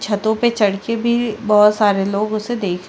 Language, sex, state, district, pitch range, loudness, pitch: Hindi, female, Chhattisgarh, Sarguja, 205-230 Hz, -17 LUFS, 215 Hz